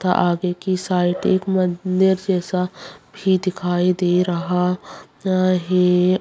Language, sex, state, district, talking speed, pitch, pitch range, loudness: Hindi, female, Bihar, Bhagalpur, 115 wpm, 180 Hz, 180-185 Hz, -19 LUFS